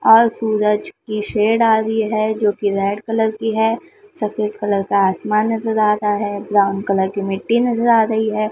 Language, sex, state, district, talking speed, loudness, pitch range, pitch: Hindi, female, Maharashtra, Mumbai Suburban, 205 wpm, -17 LUFS, 205-225 Hz, 215 Hz